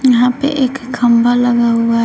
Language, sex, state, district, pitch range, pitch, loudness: Hindi, female, Uttar Pradesh, Shamli, 235-255 Hz, 245 Hz, -13 LUFS